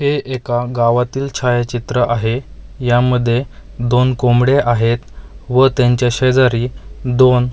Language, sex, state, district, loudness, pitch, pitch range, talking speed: Marathi, male, Maharashtra, Mumbai Suburban, -15 LUFS, 125 Hz, 120-130 Hz, 110 wpm